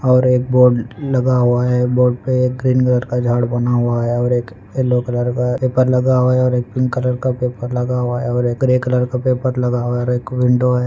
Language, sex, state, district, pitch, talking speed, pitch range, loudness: Hindi, male, Andhra Pradesh, Anantapur, 125 Hz, 255 wpm, 120-125 Hz, -16 LUFS